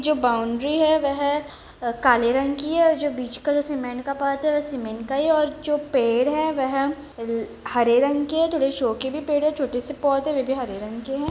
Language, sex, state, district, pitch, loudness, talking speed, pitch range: Hindi, female, Bihar, Saran, 275 Hz, -23 LUFS, 265 wpm, 250-295 Hz